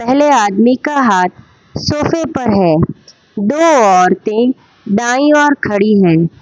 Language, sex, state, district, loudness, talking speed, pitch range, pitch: Hindi, female, Gujarat, Valsad, -12 LUFS, 120 wpm, 195-275 Hz, 220 Hz